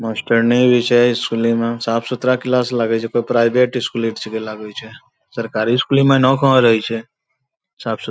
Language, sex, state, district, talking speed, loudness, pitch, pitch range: Angika, male, Bihar, Bhagalpur, 185 wpm, -16 LUFS, 115 Hz, 115-125 Hz